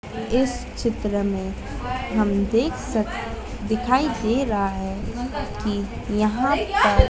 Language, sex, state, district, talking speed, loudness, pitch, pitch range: Hindi, female, Madhya Pradesh, Dhar, 110 wpm, -23 LUFS, 220 Hz, 205-250 Hz